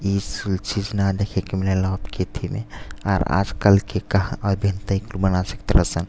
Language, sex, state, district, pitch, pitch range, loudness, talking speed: Bhojpuri, male, Uttar Pradesh, Deoria, 95 Hz, 95-100 Hz, -22 LUFS, 150 wpm